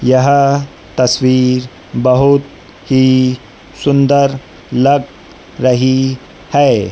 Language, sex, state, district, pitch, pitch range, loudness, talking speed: Hindi, male, Madhya Pradesh, Dhar, 130 Hz, 125-140 Hz, -12 LUFS, 70 wpm